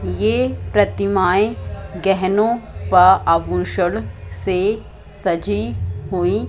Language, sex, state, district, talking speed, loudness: Hindi, female, Madhya Pradesh, Katni, 75 wpm, -18 LUFS